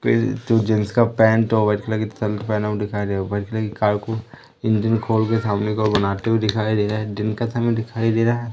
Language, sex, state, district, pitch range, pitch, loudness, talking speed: Hindi, female, Madhya Pradesh, Umaria, 105-115 Hz, 110 Hz, -20 LUFS, 255 wpm